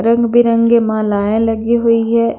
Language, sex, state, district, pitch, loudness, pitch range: Hindi, female, Bihar, Patna, 230 Hz, -13 LUFS, 225-235 Hz